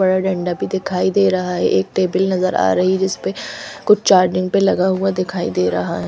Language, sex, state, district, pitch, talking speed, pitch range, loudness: Hindi, female, Punjab, Fazilka, 185 Hz, 225 wpm, 180-190 Hz, -17 LUFS